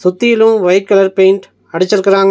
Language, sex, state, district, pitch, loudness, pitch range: Tamil, male, Tamil Nadu, Nilgiris, 195 Hz, -11 LUFS, 190-205 Hz